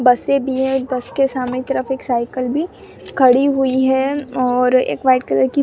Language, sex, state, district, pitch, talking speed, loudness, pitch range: Hindi, female, Bihar, Purnia, 260 Hz, 215 wpm, -17 LUFS, 250-270 Hz